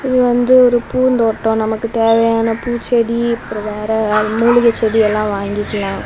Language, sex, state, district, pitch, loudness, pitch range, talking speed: Tamil, female, Tamil Nadu, Kanyakumari, 225 Hz, -14 LUFS, 215-240 Hz, 130 wpm